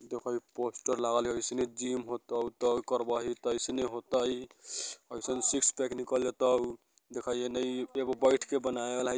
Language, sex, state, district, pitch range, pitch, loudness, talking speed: Bajjika, male, Bihar, Vaishali, 120-130 Hz, 125 Hz, -32 LUFS, 145 wpm